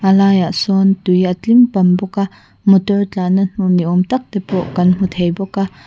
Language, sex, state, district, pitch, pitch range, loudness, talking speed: Mizo, female, Mizoram, Aizawl, 190 Hz, 180-195 Hz, -14 LUFS, 245 wpm